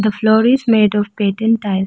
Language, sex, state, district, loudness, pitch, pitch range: English, female, Arunachal Pradesh, Lower Dibang Valley, -14 LUFS, 215 Hz, 205-225 Hz